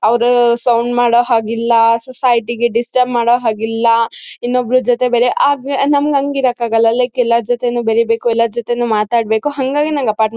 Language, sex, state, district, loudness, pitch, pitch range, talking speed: Kannada, female, Karnataka, Mysore, -14 LUFS, 240 Hz, 230-250 Hz, 145 wpm